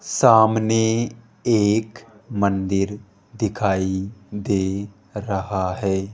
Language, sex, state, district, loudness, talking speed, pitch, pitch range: Hindi, male, Rajasthan, Jaipur, -21 LUFS, 70 wpm, 105 Hz, 95-110 Hz